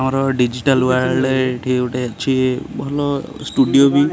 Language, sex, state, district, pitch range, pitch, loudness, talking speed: Odia, male, Odisha, Khordha, 125-140 Hz, 130 Hz, -17 LUFS, 130 wpm